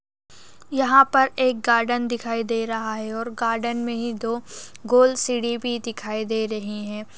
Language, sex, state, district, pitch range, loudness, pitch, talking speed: Hindi, female, Uttar Pradesh, Jyotiba Phule Nagar, 225-245 Hz, -22 LUFS, 235 Hz, 165 wpm